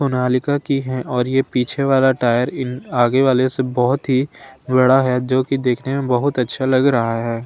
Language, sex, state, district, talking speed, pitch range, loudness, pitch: Hindi, male, Bihar, Kaimur, 200 wpm, 125-135 Hz, -18 LUFS, 130 Hz